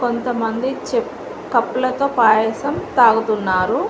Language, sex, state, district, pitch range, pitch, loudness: Telugu, female, Telangana, Mahabubabad, 220-265 Hz, 240 Hz, -18 LUFS